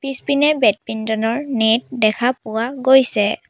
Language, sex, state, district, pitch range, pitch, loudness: Assamese, female, Assam, Sonitpur, 220-265 Hz, 240 Hz, -17 LUFS